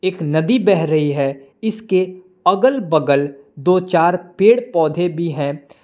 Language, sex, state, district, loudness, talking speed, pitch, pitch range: Hindi, male, Jharkhand, Palamu, -17 LUFS, 145 wpm, 175 Hz, 150-185 Hz